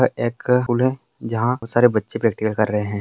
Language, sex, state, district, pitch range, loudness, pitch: Hindi, male, Bihar, Bhagalpur, 110-120 Hz, -20 LUFS, 115 Hz